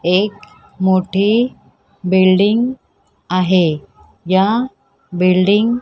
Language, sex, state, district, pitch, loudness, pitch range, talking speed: Marathi, female, Maharashtra, Mumbai Suburban, 190 Hz, -15 LUFS, 185-210 Hz, 70 wpm